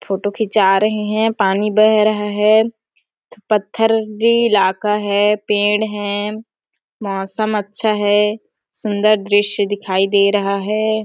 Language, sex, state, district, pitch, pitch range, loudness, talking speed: Hindi, female, Chhattisgarh, Sarguja, 210 Hz, 205-215 Hz, -16 LUFS, 120 wpm